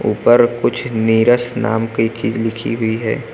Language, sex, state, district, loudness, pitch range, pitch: Hindi, male, Uttar Pradesh, Lucknow, -16 LUFS, 110-120 Hz, 115 Hz